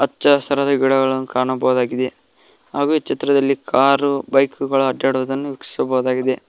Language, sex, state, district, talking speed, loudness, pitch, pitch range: Kannada, male, Karnataka, Koppal, 110 wpm, -18 LUFS, 135 Hz, 130-140 Hz